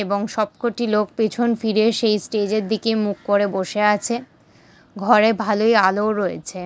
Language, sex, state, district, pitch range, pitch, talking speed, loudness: Bengali, female, West Bengal, Malda, 205-225 Hz, 215 Hz, 155 wpm, -20 LUFS